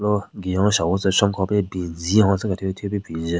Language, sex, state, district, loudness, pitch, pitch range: Rengma, male, Nagaland, Kohima, -21 LUFS, 95 Hz, 90-100 Hz